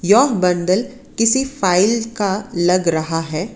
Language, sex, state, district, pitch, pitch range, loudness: Hindi, female, Karnataka, Bangalore, 195 Hz, 175-230 Hz, -17 LUFS